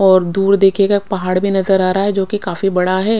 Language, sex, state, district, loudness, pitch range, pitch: Hindi, female, Odisha, Khordha, -15 LUFS, 185-200 Hz, 195 Hz